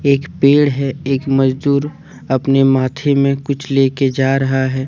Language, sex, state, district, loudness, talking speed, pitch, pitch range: Hindi, male, Jharkhand, Deoghar, -15 LUFS, 160 wpm, 135 Hz, 135-140 Hz